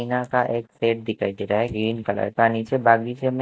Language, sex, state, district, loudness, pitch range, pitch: Hindi, male, Himachal Pradesh, Shimla, -22 LUFS, 115-125 Hz, 115 Hz